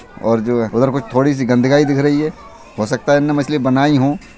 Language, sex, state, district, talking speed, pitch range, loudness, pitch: Hindi, male, Uttar Pradesh, Budaun, 235 wpm, 120-145 Hz, -15 LUFS, 135 Hz